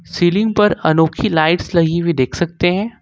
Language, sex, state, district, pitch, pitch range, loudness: Hindi, male, Jharkhand, Ranchi, 175 Hz, 160-200 Hz, -15 LUFS